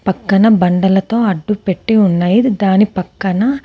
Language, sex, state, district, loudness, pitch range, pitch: Telugu, female, Telangana, Komaram Bheem, -13 LUFS, 190-220 Hz, 195 Hz